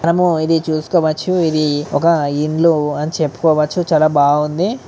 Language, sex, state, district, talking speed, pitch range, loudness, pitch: Telugu, male, Telangana, Karimnagar, 125 wpm, 150-170 Hz, -15 LUFS, 155 Hz